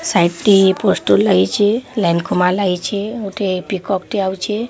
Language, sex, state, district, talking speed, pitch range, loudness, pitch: Odia, female, Odisha, Sambalpur, 130 wpm, 180-210 Hz, -16 LUFS, 195 Hz